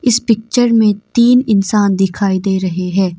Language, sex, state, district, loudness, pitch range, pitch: Hindi, female, Arunachal Pradesh, Papum Pare, -13 LUFS, 190-235 Hz, 205 Hz